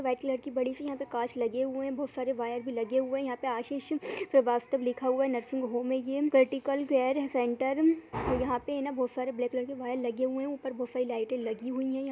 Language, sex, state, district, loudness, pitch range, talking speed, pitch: Hindi, female, Uttar Pradesh, Budaun, -31 LUFS, 250-275 Hz, 255 wpm, 260 Hz